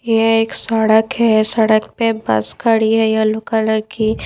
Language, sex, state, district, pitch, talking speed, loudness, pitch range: Hindi, female, Odisha, Nuapada, 220 Hz, 170 wpm, -15 LUFS, 220-225 Hz